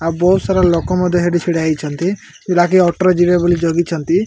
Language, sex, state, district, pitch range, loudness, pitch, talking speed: Odia, male, Odisha, Malkangiri, 170-180 Hz, -15 LUFS, 175 Hz, 195 wpm